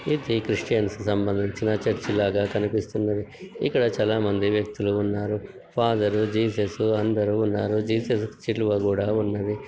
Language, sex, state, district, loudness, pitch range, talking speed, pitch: Telugu, male, Telangana, Karimnagar, -25 LUFS, 105-110 Hz, 125 wpm, 105 Hz